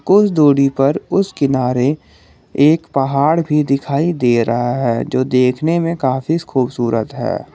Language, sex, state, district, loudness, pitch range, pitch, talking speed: Hindi, male, Jharkhand, Garhwa, -15 LUFS, 125-160 Hz, 140 Hz, 145 wpm